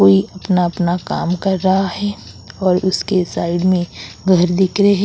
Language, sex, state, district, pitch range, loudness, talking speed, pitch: Hindi, female, Goa, North and South Goa, 175-190 Hz, -17 LUFS, 180 wpm, 185 Hz